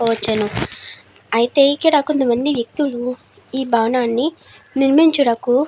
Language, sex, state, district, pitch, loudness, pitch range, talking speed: Telugu, female, Andhra Pradesh, Srikakulam, 255 Hz, -17 LUFS, 235-285 Hz, 95 wpm